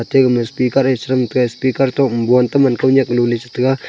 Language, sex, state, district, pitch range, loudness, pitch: Wancho, male, Arunachal Pradesh, Longding, 120-135 Hz, -15 LUFS, 125 Hz